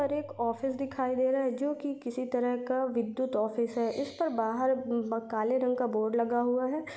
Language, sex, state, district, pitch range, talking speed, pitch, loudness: Hindi, female, Maharashtra, Chandrapur, 235-270 Hz, 225 wpm, 255 Hz, -31 LUFS